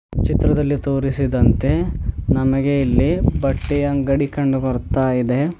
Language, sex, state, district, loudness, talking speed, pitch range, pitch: Kannada, male, Karnataka, Bidar, -19 LUFS, 85 wpm, 125-140 Hz, 135 Hz